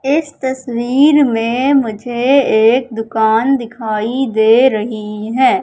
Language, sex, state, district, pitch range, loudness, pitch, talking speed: Hindi, female, Madhya Pradesh, Katni, 220-265 Hz, -14 LUFS, 240 Hz, 105 wpm